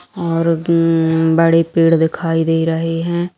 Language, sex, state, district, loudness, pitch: Hindi, female, Bihar, Bhagalpur, -15 LUFS, 165 Hz